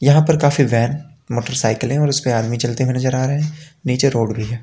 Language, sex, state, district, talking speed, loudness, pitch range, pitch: Hindi, male, Uttar Pradesh, Lalitpur, 245 wpm, -18 LUFS, 120-145 Hz, 130 Hz